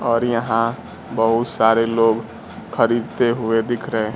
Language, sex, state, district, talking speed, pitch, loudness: Hindi, male, Bihar, Kaimur, 130 wpm, 115 Hz, -19 LUFS